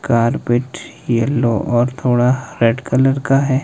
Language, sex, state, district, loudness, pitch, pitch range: Hindi, male, Himachal Pradesh, Shimla, -16 LUFS, 125 Hz, 120-135 Hz